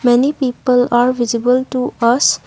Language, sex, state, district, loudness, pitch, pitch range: English, female, Assam, Kamrup Metropolitan, -15 LUFS, 250 Hz, 240-255 Hz